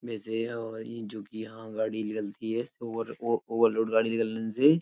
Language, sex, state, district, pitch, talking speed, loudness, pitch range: Hindi, male, Uttar Pradesh, Etah, 110 Hz, 185 wpm, -30 LUFS, 110-115 Hz